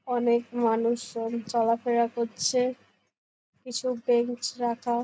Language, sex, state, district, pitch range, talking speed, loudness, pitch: Bengali, female, West Bengal, Jhargram, 230-245 Hz, 85 wpm, -27 LUFS, 235 Hz